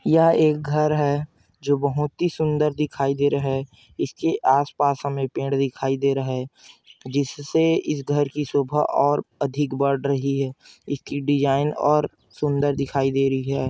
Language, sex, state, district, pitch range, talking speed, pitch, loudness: Hindi, male, Chhattisgarh, Korba, 135-150 Hz, 165 wpm, 140 Hz, -22 LUFS